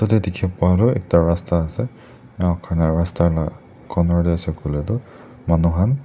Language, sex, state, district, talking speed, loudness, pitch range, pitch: Nagamese, male, Nagaland, Dimapur, 140 wpm, -20 LUFS, 85-110 Hz, 85 Hz